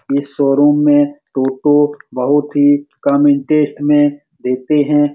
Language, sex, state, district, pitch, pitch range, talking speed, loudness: Hindi, male, Bihar, Supaul, 145 Hz, 140-145 Hz, 130 wpm, -14 LUFS